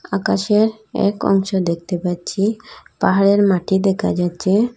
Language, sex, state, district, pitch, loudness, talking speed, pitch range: Bengali, female, Assam, Hailakandi, 195 Hz, -18 LUFS, 115 wpm, 185-210 Hz